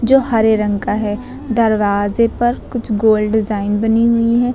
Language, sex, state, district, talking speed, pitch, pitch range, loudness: Hindi, female, Uttar Pradesh, Lucknow, 170 wpm, 225 Hz, 210-240 Hz, -15 LUFS